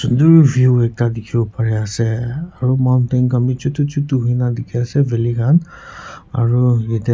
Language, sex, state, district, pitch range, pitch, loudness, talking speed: Nagamese, male, Nagaland, Kohima, 120-130 Hz, 125 Hz, -16 LUFS, 125 wpm